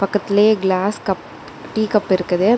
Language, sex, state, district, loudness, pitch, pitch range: Tamil, female, Tamil Nadu, Kanyakumari, -18 LUFS, 200 Hz, 190-215 Hz